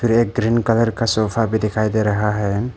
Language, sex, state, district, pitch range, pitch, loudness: Hindi, male, Arunachal Pradesh, Papum Pare, 105-115 Hz, 110 Hz, -18 LUFS